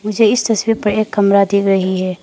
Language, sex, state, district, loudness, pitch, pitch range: Hindi, female, Arunachal Pradesh, Papum Pare, -14 LUFS, 205 Hz, 195-215 Hz